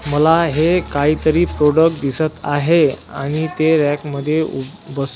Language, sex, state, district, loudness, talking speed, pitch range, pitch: Marathi, male, Maharashtra, Washim, -16 LUFS, 130 wpm, 145-160 Hz, 155 Hz